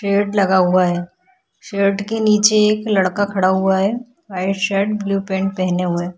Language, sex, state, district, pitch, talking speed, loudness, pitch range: Hindi, female, Chhattisgarh, Korba, 195 Hz, 185 wpm, -17 LUFS, 185-210 Hz